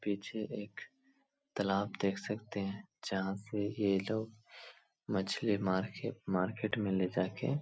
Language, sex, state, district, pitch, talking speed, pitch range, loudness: Hindi, male, Uttar Pradesh, Etah, 100 Hz, 140 wpm, 95-110 Hz, -36 LUFS